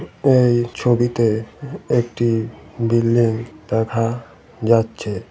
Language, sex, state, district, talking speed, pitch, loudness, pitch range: Bengali, male, West Bengal, Malda, 70 wpm, 115 Hz, -19 LUFS, 110-120 Hz